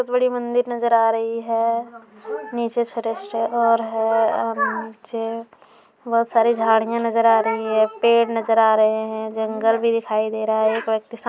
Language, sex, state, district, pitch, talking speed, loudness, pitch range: Hindi, female, Bihar, Saran, 225 Hz, 185 wpm, -20 LUFS, 220-230 Hz